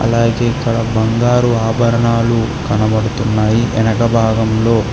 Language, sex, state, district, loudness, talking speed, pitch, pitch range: Telugu, male, Telangana, Hyderabad, -14 LUFS, 75 wpm, 115 Hz, 110-115 Hz